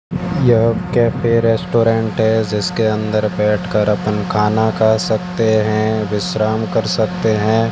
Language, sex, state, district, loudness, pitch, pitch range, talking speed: Hindi, male, Rajasthan, Barmer, -16 LUFS, 110 Hz, 105-115 Hz, 130 wpm